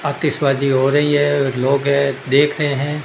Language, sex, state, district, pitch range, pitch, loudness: Hindi, male, Rajasthan, Bikaner, 140-145 Hz, 140 Hz, -16 LUFS